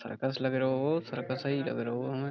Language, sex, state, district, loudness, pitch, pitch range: Hindi, male, Uttar Pradesh, Budaun, -32 LUFS, 130 Hz, 130-135 Hz